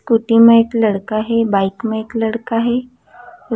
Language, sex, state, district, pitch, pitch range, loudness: Chhattisgarhi, female, Chhattisgarh, Raigarh, 230 Hz, 220-235 Hz, -15 LUFS